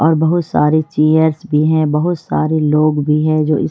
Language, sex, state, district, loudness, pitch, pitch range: Hindi, female, Jharkhand, Ranchi, -14 LUFS, 155 Hz, 150-160 Hz